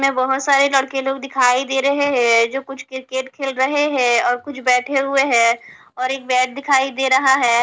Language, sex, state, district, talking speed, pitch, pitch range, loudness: Hindi, female, Haryana, Charkhi Dadri, 210 wpm, 265 Hz, 255-275 Hz, -17 LUFS